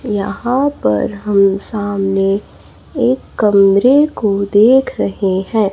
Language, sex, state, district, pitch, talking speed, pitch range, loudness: Hindi, female, Chhattisgarh, Raipur, 205 Hz, 105 wpm, 195-240 Hz, -14 LUFS